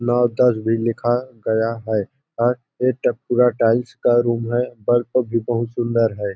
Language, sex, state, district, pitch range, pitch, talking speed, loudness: Hindi, male, Chhattisgarh, Balrampur, 115-125 Hz, 120 Hz, 190 wpm, -20 LUFS